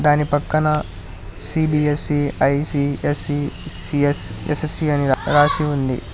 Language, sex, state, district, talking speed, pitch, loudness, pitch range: Telugu, male, Telangana, Hyderabad, 115 wpm, 145 Hz, -17 LUFS, 135-150 Hz